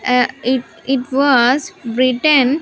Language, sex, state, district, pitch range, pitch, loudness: English, female, Andhra Pradesh, Sri Satya Sai, 250-280 Hz, 255 Hz, -15 LUFS